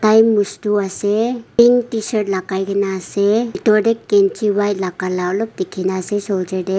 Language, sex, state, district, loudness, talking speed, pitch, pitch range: Nagamese, female, Nagaland, Kohima, -17 LUFS, 175 wpm, 205 Hz, 190-220 Hz